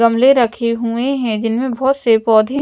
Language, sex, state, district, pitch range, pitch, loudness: Hindi, female, Chhattisgarh, Raipur, 225-260 Hz, 235 Hz, -15 LUFS